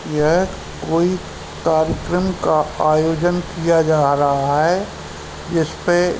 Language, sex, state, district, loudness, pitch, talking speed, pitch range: Hindi, male, Uttar Pradesh, Ghazipur, -18 LUFS, 160 Hz, 105 wpm, 150-175 Hz